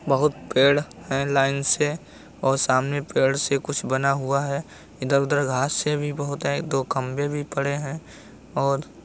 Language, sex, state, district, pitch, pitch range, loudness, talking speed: Hindi, male, Uttar Pradesh, Jalaun, 140 Hz, 135-145 Hz, -23 LUFS, 180 wpm